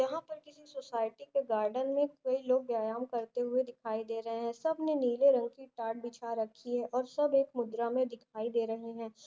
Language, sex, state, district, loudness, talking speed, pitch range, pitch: Hindi, female, Bihar, Jahanabad, -34 LUFS, 200 wpm, 230-270 Hz, 245 Hz